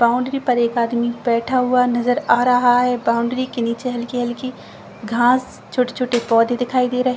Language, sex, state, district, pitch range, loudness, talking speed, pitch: Hindi, female, Jharkhand, Jamtara, 235-250 Hz, -18 LUFS, 190 wpm, 245 Hz